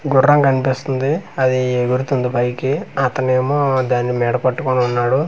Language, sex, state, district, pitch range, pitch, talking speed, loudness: Telugu, male, Andhra Pradesh, Manyam, 125-135 Hz, 130 Hz, 135 wpm, -17 LUFS